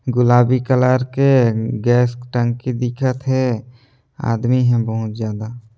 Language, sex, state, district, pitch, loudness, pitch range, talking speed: Chhattisgarhi, male, Chhattisgarh, Sarguja, 125 Hz, -17 LUFS, 120-130 Hz, 115 wpm